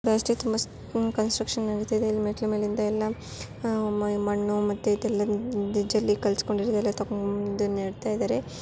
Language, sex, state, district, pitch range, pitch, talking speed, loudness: Kannada, female, Karnataka, Chamarajanagar, 205-220 Hz, 210 Hz, 120 wpm, -27 LUFS